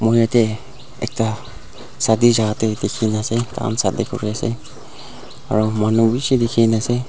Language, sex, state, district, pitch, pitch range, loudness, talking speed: Nagamese, male, Nagaland, Dimapur, 115 Hz, 110-120 Hz, -18 LUFS, 145 wpm